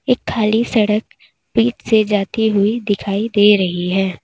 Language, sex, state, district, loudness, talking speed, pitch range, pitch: Hindi, female, Uttar Pradesh, Lalitpur, -16 LUFS, 155 wpm, 200-225 Hz, 210 Hz